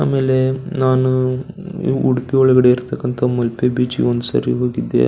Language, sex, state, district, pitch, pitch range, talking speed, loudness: Kannada, male, Karnataka, Belgaum, 130 Hz, 120-130 Hz, 130 wpm, -17 LUFS